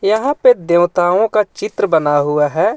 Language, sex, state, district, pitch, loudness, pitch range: Hindi, male, Jharkhand, Ranchi, 180 Hz, -14 LUFS, 160-225 Hz